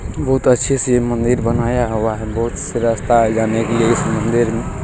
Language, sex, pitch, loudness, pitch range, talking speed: Maithili, male, 115 Hz, -16 LUFS, 115-120 Hz, 235 wpm